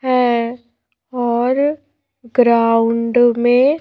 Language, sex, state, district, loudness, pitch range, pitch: Hindi, female, Madhya Pradesh, Bhopal, -15 LUFS, 235-255 Hz, 245 Hz